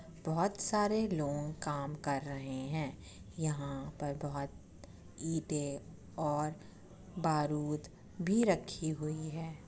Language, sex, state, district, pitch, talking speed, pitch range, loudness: Hindi, female, Uttar Pradesh, Etah, 150 Hz, 105 wpm, 140-160 Hz, -37 LUFS